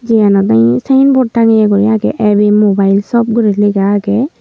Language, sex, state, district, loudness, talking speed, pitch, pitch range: Chakma, female, Tripura, Unakoti, -10 LUFS, 165 wpm, 210 Hz, 200-230 Hz